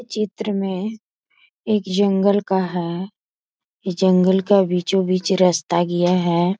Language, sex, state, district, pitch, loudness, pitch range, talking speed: Hindi, female, Bihar, East Champaran, 190 Hz, -19 LUFS, 180-205 Hz, 120 wpm